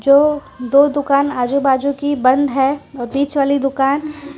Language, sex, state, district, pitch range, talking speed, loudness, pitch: Hindi, female, Gujarat, Valsad, 270-285 Hz, 165 wpm, -16 LUFS, 280 Hz